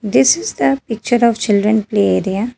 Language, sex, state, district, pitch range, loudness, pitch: English, female, Telangana, Hyderabad, 205-245 Hz, -15 LUFS, 220 Hz